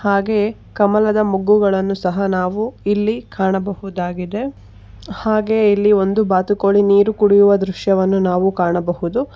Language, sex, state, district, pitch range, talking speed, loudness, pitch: Kannada, female, Karnataka, Bangalore, 185-210 Hz, 105 wpm, -16 LUFS, 200 Hz